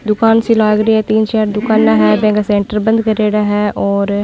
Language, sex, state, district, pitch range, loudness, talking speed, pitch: Marwari, female, Rajasthan, Nagaur, 205-220 Hz, -13 LUFS, 200 wpm, 215 Hz